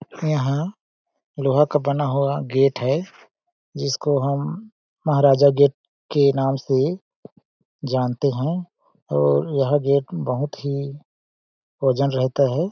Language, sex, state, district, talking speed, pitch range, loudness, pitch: Hindi, male, Chhattisgarh, Balrampur, 115 wpm, 135-150 Hz, -21 LUFS, 140 Hz